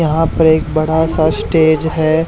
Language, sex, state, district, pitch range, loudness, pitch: Hindi, male, Haryana, Charkhi Dadri, 155-160 Hz, -13 LUFS, 160 Hz